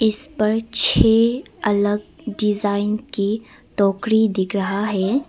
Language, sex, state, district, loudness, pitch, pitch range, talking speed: Hindi, female, Arunachal Pradesh, Papum Pare, -19 LUFS, 210 Hz, 205-225 Hz, 115 wpm